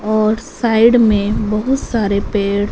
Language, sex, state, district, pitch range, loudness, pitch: Hindi, female, Punjab, Fazilka, 205-230 Hz, -15 LUFS, 215 Hz